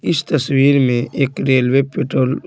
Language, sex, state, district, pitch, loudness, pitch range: Hindi, male, Bihar, Patna, 135 Hz, -16 LUFS, 130-145 Hz